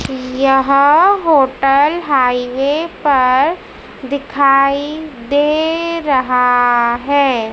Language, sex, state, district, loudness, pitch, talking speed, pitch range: Hindi, male, Madhya Pradesh, Dhar, -13 LUFS, 275 Hz, 65 wpm, 255-295 Hz